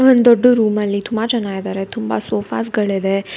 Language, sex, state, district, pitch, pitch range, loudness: Kannada, female, Karnataka, Bangalore, 205 Hz, 195-235 Hz, -17 LUFS